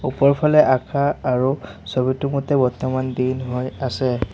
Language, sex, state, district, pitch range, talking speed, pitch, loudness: Assamese, male, Assam, Sonitpur, 125-140 Hz, 125 wpm, 130 Hz, -20 LUFS